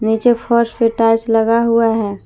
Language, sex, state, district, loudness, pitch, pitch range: Hindi, female, Jharkhand, Palamu, -14 LUFS, 230 Hz, 225-230 Hz